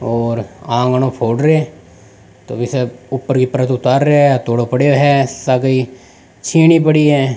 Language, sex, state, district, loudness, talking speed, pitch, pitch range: Rajasthani, male, Rajasthan, Nagaur, -14 LUFS, 170 wpm, 130 Hz, 120-140 Hz